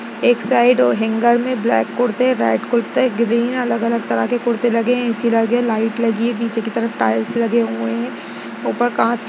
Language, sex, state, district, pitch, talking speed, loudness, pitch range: Hindi, female, Bihar, Jahanabad, 235 Hz, 205 wpm, -17 LUFS, 225-240 Hz